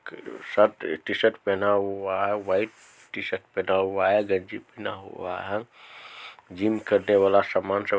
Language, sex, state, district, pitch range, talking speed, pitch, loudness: Maithili, male, Bihar, Supaul, 95-100 Hz, 145 wpm, 100 Hz, -25 LUFS